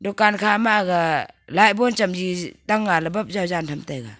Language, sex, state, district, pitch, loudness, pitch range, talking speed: Wancho, female, Arunachal Pradesh, Longding, 195 Hz, -20 LUFS, 170-215 Hz, 200 wpm